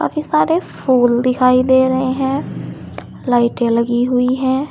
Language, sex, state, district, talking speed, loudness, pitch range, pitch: Hindi, female, Uttar Pradesh, Saharanpur, 140 wpm, -15 LUFS, 245-265 Hz, 255 Hz